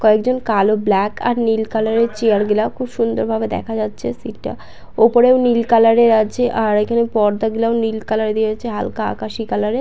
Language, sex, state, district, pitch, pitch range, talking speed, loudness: Bengali, female, West Bengal, Purulia, 225 Hz, 215-235 Hz, 195 wpm, -17 LUFS